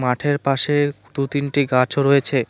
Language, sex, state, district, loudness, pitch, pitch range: Bengali, male, West Bengal, Cooch Behar, -18 LUFS, 140 Hz, 130-145 Hz